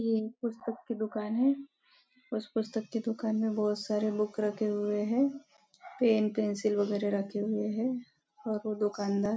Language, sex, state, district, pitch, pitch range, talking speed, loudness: Hindi, female, Maharashtra, Nagpur, 220 Hz, 210-235 Hz, 155 wpm, -32 LUFS